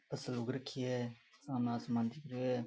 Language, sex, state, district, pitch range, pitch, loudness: Rajasthani, male, Rajasthan, Nagaur, 120-135 Hz, 125 Hz, -40 LUFS